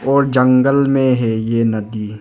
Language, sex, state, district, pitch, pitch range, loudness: Hindi, male, Arunachal Pradesh, Lower Dibang Valley, 125 Hz, 110-135 Hz, -15 LUFS